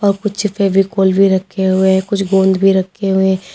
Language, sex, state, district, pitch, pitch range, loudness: Hindi, female, Uttar Pradesh, Lalitpur, 195 Hz, 190-195 Hz, -14 LUFS